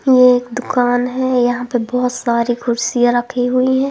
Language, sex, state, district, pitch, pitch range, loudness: Hindi, female, Madhya Pradesh, Katni, 245 Hz, 245-255 Hz, -16 LUFS